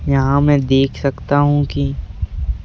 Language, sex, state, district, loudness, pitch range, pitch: Hindi, male, Madhya Pradesh, Bhopal, -16 LUFS, 90-140 Hz, 135 Hz